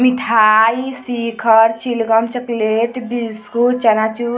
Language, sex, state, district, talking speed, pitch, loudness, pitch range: Hindi, female, Bihar, Vaishali, 95 wpm, 230 Hz, -15 LUFS, 225-245 Hz